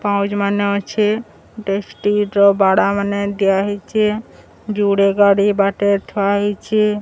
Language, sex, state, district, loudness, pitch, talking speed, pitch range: Odia, male, Odisha, Sambalpur, -16 LUFS, 200 Hz, 110 wpm, 200-210 Hz